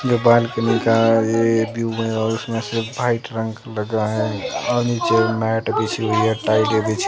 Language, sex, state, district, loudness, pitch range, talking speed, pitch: Hindi, female, Himachal Pradesh, Shimla, -19 LUFS, 110-115 Hz, 170 wpm, 115 Hz